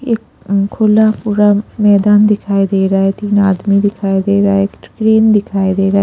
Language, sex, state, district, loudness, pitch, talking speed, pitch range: Hindi, female, Punjab, Pathankot, -12 LUFS, 200 Hz, 210 wpm, 195-210 Hz